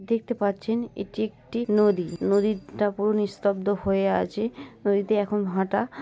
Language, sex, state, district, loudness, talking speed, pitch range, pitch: Bengali, female, West Bengal, North 24 Parganas, -25 LUFS, 140 wpm, 200-215 Hz, 205 Hz